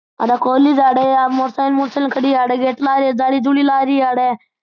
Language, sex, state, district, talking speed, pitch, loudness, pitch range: Marwari, male, Rajasthan, Churu, 235 wpm, 265 Hz, -15 LUFS, 255-275 Hz